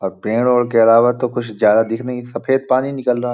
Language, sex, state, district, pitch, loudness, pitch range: Hindi, male, Chhattisgarh, Balrampur, 120 Hz, -16 LUFS, 115-125 Hz